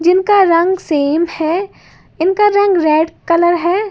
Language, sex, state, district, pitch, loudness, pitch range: Hindi, female, Uttar Pradesh, Lalitpur, 345 Hz, -13 LUFS, 330-390 Hz